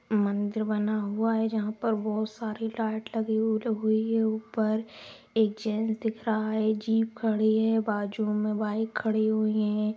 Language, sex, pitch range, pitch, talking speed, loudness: Magahi, female, 215-225 Hz, 220 Hz, 170 wpm, -28 LUFS